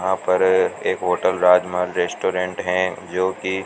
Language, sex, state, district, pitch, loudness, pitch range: Hindi, male, Rajasthan, Bikaner, 90 Hz, -20 LUFS, 90-95 Hz